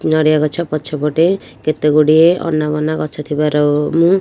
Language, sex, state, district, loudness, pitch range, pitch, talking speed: Odia, female, Odisha, Nuapada, -15 LUFS, 150-160 Hz, 155 Hz, 140 wpm